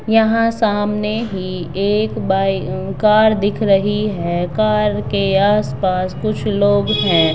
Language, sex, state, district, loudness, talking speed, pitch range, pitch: Hindi, female, Bihar, Begusarai, -16 LUFS, 120 wpm, 190-215 Hz, 205 Hz